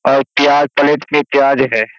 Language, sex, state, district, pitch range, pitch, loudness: Hindi, male, Bihar, Kishanganj, 135-145 Hz, 140 Hz, -12 LUFS